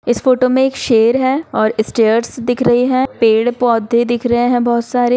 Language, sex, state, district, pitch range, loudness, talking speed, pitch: Hindi, female, Bihar, Saran, 235-255 Hz, -14 LUFS, 200 wpm, 240 Hz